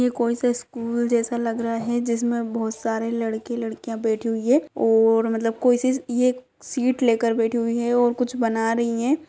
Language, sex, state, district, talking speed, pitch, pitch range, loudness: Hindi, female, Bihar, Jamui, 200 wpm, 235 Hz, 230-245 Hz, -22 LUFS